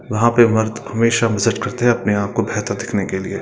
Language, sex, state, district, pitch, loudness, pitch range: Hindi, male, Bihar, Gaya, 110 Hz, -18 LUFS, 100-115 Hz